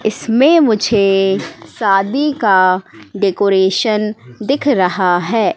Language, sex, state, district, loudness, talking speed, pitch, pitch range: Hindi, female, Madhya Pradesh, Katni, -14 LUFS, 85 wpm, 205 Hz, 190-230 Hz